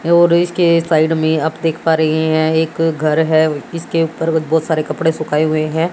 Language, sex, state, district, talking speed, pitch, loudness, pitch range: Hindi, female, Haryana, Jhajjar, 210 wpm, 160 Hz, -15 LUFS, 155-165 Hz